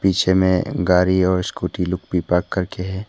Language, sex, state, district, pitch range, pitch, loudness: Hindi, male, Arunachal Pradesh, Papum Pare, 90-95 Hz, 90 Hz, -19 LUFS